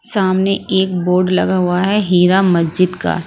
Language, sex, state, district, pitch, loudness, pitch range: Hindi, female, Punjab, Pathankot, 185 Hz, -14 LUFS, 180-195 Hz